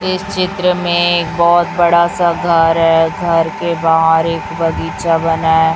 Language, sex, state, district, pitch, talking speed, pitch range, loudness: Hindi, male, Chhattisgarh, Raipur, 170 Hz, 165 wpm, 165-175 Hz, -13 LUFS